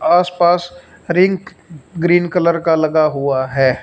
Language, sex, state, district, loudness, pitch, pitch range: Hindi, male, Punjab, Fazilka, -15 LUFS, 175 Hz, 155-180 Hz